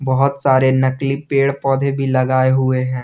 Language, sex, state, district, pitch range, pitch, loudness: Hindi, male, Jharkhand, Garhwa, 130-135 Hz, 130 Hz, -16 LUFS